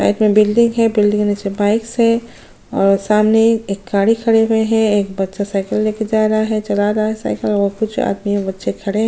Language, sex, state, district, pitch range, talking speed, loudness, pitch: Hindi, female, Maharashtra, Chandrapur, 200-225 Hz, 225 wpm, -16 LUFS, 215 Hz